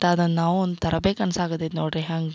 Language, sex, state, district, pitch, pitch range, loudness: Kannada, female, Karnataka, Belgaum, 165 Hz, 165-180 Hz, -24 LUFS